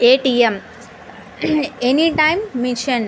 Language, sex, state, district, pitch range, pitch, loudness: Telugu, female, Andhra Pradesh, Anantapur, 245-310 Hz, 255 Hz, -17 LUFS